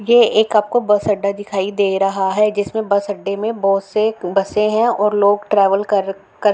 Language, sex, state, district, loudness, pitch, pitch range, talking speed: Hindi, female, Uttar Pradesh, Etah, -16 LUFS, 205 Hz, 195-215 Hz, 210 wpm